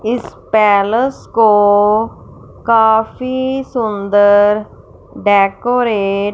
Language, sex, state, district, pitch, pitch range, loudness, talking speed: Hindi, female, Punjab, Fazilka, 215 Hz, 205-235 Hz, -13 LUFS, 65 wpm